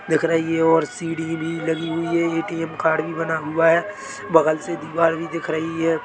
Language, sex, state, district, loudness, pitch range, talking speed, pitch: Hindi, male, Chhattisgarh, Bilaspur, -21 LUFS, 160-165 Hz, 220 wpm, 165 Hz